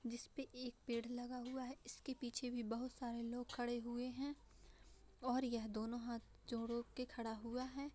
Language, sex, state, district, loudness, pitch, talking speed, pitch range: Hindi, female, Bihar, Vaishali, -46 LUFS, 245 Hz, 180 wpm, 235-255 Hz